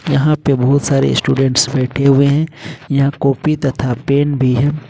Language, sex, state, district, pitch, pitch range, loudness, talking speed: Hindi, male, Jharkhand, Ranchi, 140 Hz, 130-145 Hz, -14 LUFS, 170 wpm